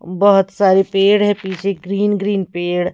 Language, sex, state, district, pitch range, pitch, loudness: Hindi, female, Odisha, Khordha, 185-205 Hz, 195 Hz, -16 LUFS